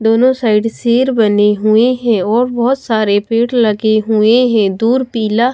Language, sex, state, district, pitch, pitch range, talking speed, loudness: Hindi, female, Odisha, Khordha, 225 Hz, 215-245 Hz, 160 wpm, -12 LUFS